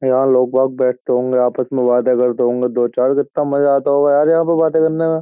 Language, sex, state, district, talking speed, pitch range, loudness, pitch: Hindi, male, Uttar Pradesh, Jyotiba Phule Nagar, 240 wpm, 125-145 Hz, -15 LUFS, 130 Hz